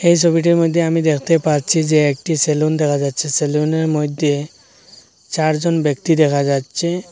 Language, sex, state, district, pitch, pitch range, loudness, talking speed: Bengali, male, Assam, Hailakandi, 155 Hz, 150-165 Hz, -16 LUFS, 145 wpm